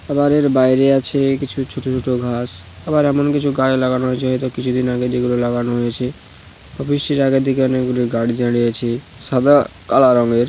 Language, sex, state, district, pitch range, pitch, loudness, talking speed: Bengali, male, West Bengal, Paschim Medinipur, 120-135 Hz, 130 Hz, -17 LUFS, 170 wpm